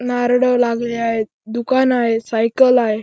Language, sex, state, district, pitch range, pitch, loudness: Marathi, male, Maharashtra, Chandrapur, 230-250 Hz, 240 Hz, -17 LUFS